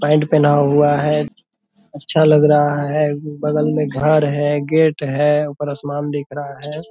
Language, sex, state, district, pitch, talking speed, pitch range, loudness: Hindi, male, Bihar, Purnia, 150 Hz, 165 wpm, 145-150 Hz, -16 LUFS